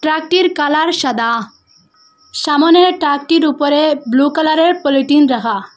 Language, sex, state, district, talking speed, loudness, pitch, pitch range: Bengali, female, Assam, Hailakandi, 105 wpm, -13 LUFS, 295 Hz, 275-320 Hz